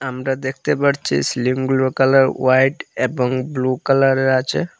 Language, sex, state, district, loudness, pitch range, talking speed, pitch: Bengali, male, Assam, Hailakandi, -18 LUFS, 130-135 Hz, 125 wpm, 130 Hz